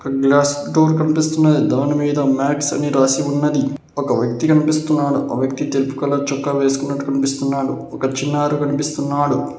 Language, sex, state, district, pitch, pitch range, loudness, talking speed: Telugu, male, Telangana, Hyderabad, 145 Hz, 135-145 Hz, -18 LUFS, 130 wpm